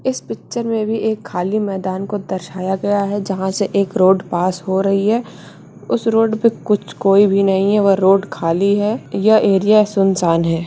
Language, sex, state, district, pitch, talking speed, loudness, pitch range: Hindi, female, Bihar, Samastipur, 195 Hz, 195 wpm, -16 LUFS, 190-210 Hz